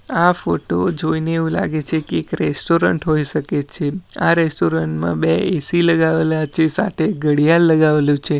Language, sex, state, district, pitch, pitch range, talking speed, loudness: Gujarati, male, Gujarat, Valsad, 160 Hz, 145-170 Hz, 155 wpm, -17 LUFS